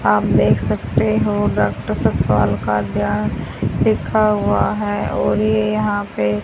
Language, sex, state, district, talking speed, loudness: Hindi, female, Haryana, Charkhi Dadri, 140 wpm, -18 LUFS